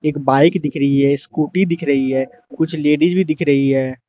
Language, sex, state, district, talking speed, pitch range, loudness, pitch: Hindi, male, Arunachal Pradesh, Lower Dibang Valley, 220 wpm, 135-160 Hz, -16 LUFS, 145 Hz